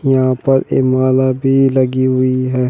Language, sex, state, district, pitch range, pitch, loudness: Hindi, male, Uttar Pradesh, Shamli, 130-135 Hz, 130 Hz, -14 LUFS